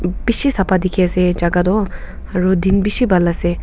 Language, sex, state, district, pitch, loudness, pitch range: Nagamese, female, Nagaland, Kohima, 185 Hz, -16 LUFS, 180-200 Hz